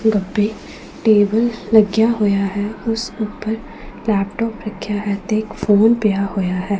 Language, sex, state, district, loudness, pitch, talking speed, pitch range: Punjabi, female, Punjab, Pathankot, -18 LUFS, 215 Hz, 140 wpm, 205-225 Hz